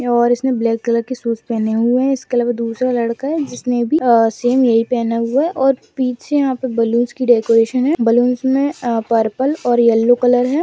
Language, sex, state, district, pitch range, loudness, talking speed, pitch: Hindi, female, Rajasthan, Nagaur, 230-260 Hz, -16 LUFS, 210 wpm, 245 Hz